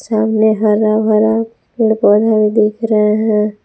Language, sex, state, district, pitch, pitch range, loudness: Hindi, female, Jharkhand, Palamu, 215 Hz, 215-220 Hz, -13 LUFS